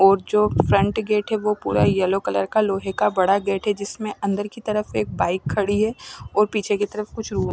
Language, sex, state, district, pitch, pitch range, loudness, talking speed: Hindi, female, Maharashtra, Washim, 205 Hz, 195-210 Hz, -22 LUFS, 230 wpm